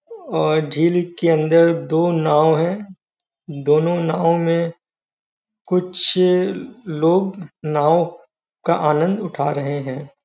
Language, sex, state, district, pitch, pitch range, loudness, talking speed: Hindi, male, Uttar Pradesh, Gorakhpur, 170 Hz, 155-180 Hz, -18 LUFS, 105 wpm